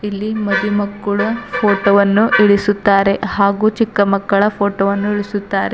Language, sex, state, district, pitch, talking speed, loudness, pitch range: Kannada, female, Karnataka, Bidar, 205 Hz, 115 wpm, -15 LUFS, 200-210 Hz